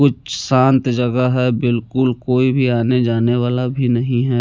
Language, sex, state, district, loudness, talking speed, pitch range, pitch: Hindi, male, Chandigarh, Chandigarh, -16 LUFS, 165 wpm, 120-130 Hz, 125 Hz